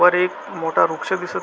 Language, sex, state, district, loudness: Marathi, male, Maharashtra, Solapur, -20 LUFS